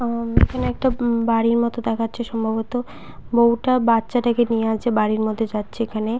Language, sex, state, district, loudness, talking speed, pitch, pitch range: Bengali, female, West Bengal, Purulia, -20 LUFS, 155 wpm, 230 Hz, 225-240 Hz